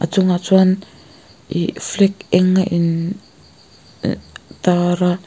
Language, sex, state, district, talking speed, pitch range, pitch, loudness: Mizo, female, Mizoram, Aizawl, 100 wpm, 175-190 Hz, 180 Hz, -17 LUFS